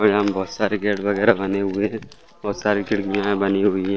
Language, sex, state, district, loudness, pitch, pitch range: Hindi, male, Chhattisgarh, Bastar, -21 LUFS, 100 Hz, 100-105 Hz